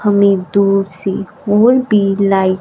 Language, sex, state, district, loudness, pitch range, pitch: Hindi, female, Punjab, Fazilka, -13 LUFS, 195-205 Hz, 200 Hz